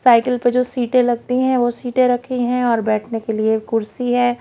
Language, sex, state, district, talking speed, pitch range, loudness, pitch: Hindi, female, Haryana, Jhajjar, 220 wpm, 230-250 Hz, -18 LUFS, 245 Hz